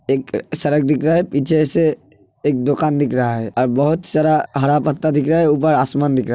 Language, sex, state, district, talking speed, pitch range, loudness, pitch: Hindi, male, Uttar Pradesh, Hamirpur, 235 wpm, 135-155 Hz, -17 LUFS, 145 Hz